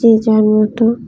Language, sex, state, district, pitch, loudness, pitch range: Bengali, female, Tripura, West Tripura, 220 Hz, -12 LUFS, 215-230 Hz